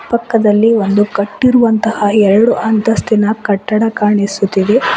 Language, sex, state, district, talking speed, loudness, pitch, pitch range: Kannada, female, Karnataka, Bidar, 85 wpm, -12 LUFS, 215 Hz, 205-225 Hz